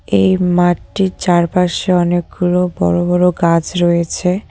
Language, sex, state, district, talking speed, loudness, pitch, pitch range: Bengali, female, West Bengal, Cooch Behar, 105 wpm, -14 LUFS, 175 Hz, 170-180 Hz